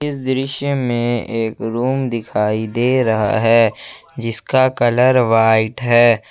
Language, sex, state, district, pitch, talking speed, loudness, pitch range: Hindi, male, Jharkhand, Ranchi, 120 Hz, 125 wpm, -16 LUFS, 115-130 Hz